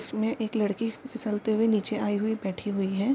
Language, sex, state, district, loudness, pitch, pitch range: Hindi, female, Bihar, Darbhanga, -28 LUFS, 215 Hz, 205-225 Hz